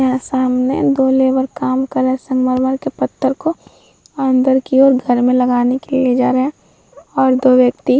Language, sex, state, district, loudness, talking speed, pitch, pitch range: Hindi, female, Bihar, Vaishali, -15 LUFS, 195 wpm, 260 Hz, 255-265 Hz